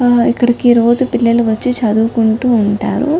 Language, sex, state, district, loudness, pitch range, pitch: Telugu, female, Telangana, Nalgonda, -13 LUFS, 225-245 Hz, 235 Hz